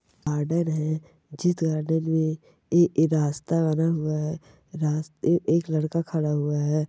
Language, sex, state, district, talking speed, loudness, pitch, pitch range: Hindi, female, Rajasthan, Churu, 140 wpm, -25 LUFS, 155 Hz, 155-165 Hz